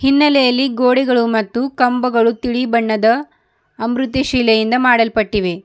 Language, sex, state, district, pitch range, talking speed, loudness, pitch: Kannada, female, Karnataka, Bidar, 225-255 Hz, 95 wpm, -15 LUFS, 245 Hz